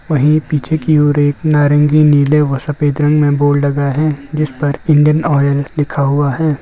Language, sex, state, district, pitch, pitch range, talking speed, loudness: Hindi, male, Bihar, Darbhanga, 145 Hz, 145-150 Hz, 190 wpm, -13 LUFS